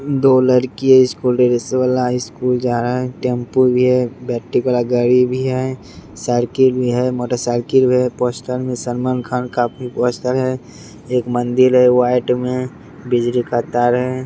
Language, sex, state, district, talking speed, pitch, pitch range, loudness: Angika, male, Bihar, Begusarai, 165 wpm, 125 Hz, 120-130 Hz, -16 LUFS